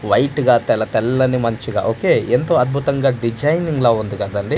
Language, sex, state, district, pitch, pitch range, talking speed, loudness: Telugu, male, Andhra Pradesh, Manyam, 125 Hz, 110-140 Hz, 145 wpm, -17 LUFS